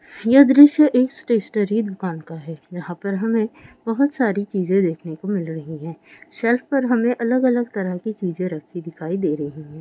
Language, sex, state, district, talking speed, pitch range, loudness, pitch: Hindi, female, Rajasthan, Churu, 185 wpm, 175-240 Hz, -19 LUFS, 200 Hz